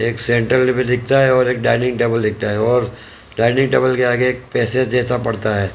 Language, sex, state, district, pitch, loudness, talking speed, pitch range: Hindi, male, Maharashtra, Mumbai Suburban, 120 Hz, -16 LUFS, 220 wpm, 115-125 Hz